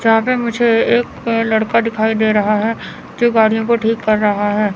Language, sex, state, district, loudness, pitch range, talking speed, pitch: Hindi, female, Chandigarh, Chandigarh, -15 LUFS, 215-230 Hz, 200 wpm, 225 Hz